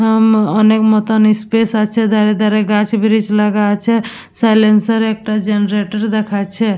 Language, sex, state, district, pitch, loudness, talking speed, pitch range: Bengali, female, West Bengal, Dakshin Dinajpur, 215 Hz, -13 LUFS, 140 wpm, 210-220 Hz